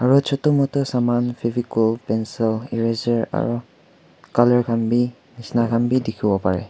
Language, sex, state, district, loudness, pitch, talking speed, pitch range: Nagamese, male, Nagaland, Kohima, -21 LUFS, 120 Hz, 150 wpm, 115-125 Hz